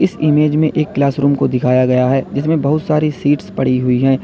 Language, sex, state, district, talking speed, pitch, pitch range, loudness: Hindi, male, Uttar Pradesh, Lalitpur, 225 wpm, 140 Hz, 130-150 Hz, -15 LUFS